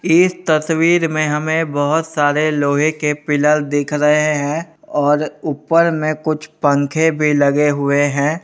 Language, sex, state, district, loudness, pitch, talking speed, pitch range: Hindi, male, Uttar Pradesh, Hamirpur, -16 LUFS, 150 Hz, 150 wpm, 145-160 Hz